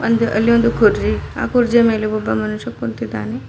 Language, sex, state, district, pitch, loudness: Kannada, female, Karnataka, Bidar, 215 Hz, -17 LUFS